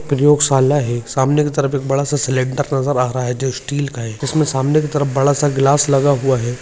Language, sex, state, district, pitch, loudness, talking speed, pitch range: Hindi, male, Uttarakhand, Tehri Garhwal, 140 Hz, -16 LUFS, 255 wpm, 130-145 Hz